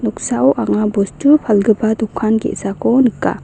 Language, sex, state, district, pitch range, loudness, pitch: Garo, female, Meghalaya, West Garo Hills, 210-240 Hz, -15 LUFS, 220 Hz